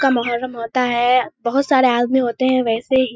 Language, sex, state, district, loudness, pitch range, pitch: Hindi, female, Bihar, Kishanganj, -17 LUFS, 240-260 Hz, 250 Hz